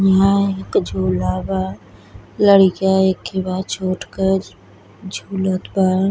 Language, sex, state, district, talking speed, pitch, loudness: Bhojpuri, female, Uttar Pradesh, Deoria, 120 wpm, 185 Hz, -18 LUFS